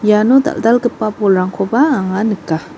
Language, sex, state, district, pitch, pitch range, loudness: Garo, female, Meghalaya, North Garo Hills, 215 Hz, 195-240 Hz, -14 LUFS